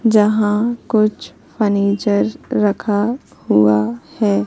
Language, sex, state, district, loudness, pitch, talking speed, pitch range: Hindi, female, Madhya Pradesh, Katni, -17 LUFS, 210 Hz, 80 wpm, 200-220 Hz